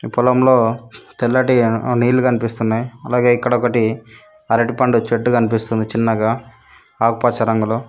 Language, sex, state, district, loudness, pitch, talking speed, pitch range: Telugu, female, Telangana, Mahabubabad, -17 LUFS, 120 Hz, 105 wpm, 115-125 Hz